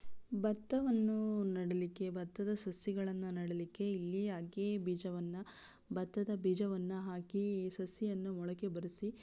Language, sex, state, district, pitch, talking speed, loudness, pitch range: Kannada, female, Karnataka, Belgaum, 190 Hz, 95 wpm, -39 LUFS, 180-205 Hz